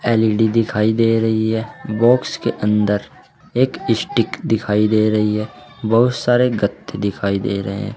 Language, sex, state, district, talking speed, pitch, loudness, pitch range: Hindi, male, Uttar Pradesh, Saharanpur, 160 wpm, 110 Hz, -18 LUFS, 105-115 Hz